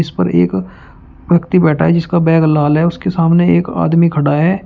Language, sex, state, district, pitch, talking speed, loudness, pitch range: Hindi, male, Uttar Pradesh, Shamli, 165 Hz, 205 wpm, -13 LUFS, 145-170 Hz